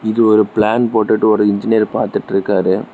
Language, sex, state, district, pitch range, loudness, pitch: Tamil, male, Tamil Nadu, Kanyakumari, 105-110 Hz, -14 LUFS, 110 Hz